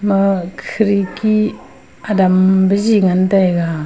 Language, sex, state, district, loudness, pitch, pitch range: Wancho, female, Arunachal Pradesh, Longding, -14 LUFS, 195 Hz, 185-205 Hz